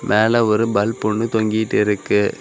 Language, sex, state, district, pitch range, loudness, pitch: Tamil, male, Tamil Nadu, Kanyakumari, 105-115 Hz, -18 LUFS, 110 Hz